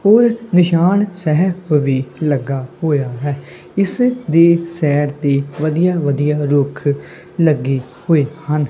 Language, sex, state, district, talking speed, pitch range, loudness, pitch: Punjabi, male, Punjab, Kapurthala, 115 wpm, 140-175 Hz, -16 LUFS, 150 Hz